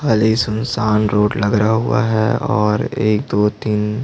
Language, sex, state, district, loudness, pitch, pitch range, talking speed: Hindi, male, Chhattisgarh, Jashpur, -17 LUFS, 105 Hz, 105-110 Hz, 150 wpm